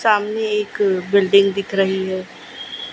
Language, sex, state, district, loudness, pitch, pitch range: Hindi, female, Gujarat, Gandhinagar, -18 LUFS, 200 Hz, 195-210 Hz